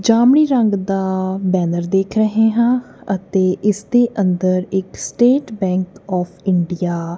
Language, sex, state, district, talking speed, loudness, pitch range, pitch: Punjabi, female, Punjab, Kapurthala, 140 wpm, -17 LUFS, 185-225 Hz, 195 Hz